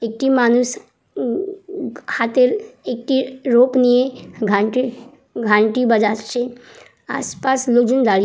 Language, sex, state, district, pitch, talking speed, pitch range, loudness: Bengali, female, West Bengal, Purulia, 250 Hz, 100 wpm, 230-260 Hz, -18 LUFS